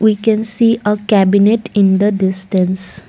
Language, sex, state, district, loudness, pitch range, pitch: English, female, Assam, Kamrup Metropolitan, -13 LUFS, 190-215 Hz, 205 Hz